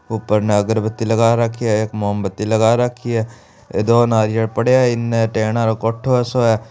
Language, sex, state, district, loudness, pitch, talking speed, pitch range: Hindi, male, Rajasthan, Churu, -17 LUFS, 115 Hz, 195 wpm, 110-115 Hz